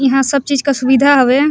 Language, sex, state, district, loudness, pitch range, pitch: Surgujia, female, Chhattisgarh, Sarguja, -12 LUFS, 265-280 Hz, 270 Hz